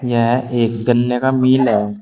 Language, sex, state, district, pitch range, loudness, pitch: Hindi, male, Uttar Pradesh, Shamli, 115-130 Hz, -16 LUFS, 120 Hz